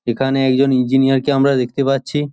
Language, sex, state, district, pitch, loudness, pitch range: Bengali, male, West Bengal, Jhargram, 135 Hz, -16 LUFS, 130-140 Hz